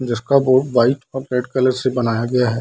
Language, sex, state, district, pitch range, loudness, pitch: Hindi, male, Bihar, Darbhanga, 120-130 Hz, -17 LUFS, 125 Hz